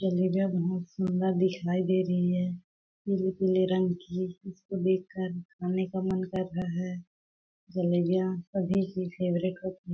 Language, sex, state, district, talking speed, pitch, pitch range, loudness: Hindi, female, Chhattisgarh, Balrampur, 150 wpm, 185 Hz, 180-190 Hz, -30 LUFS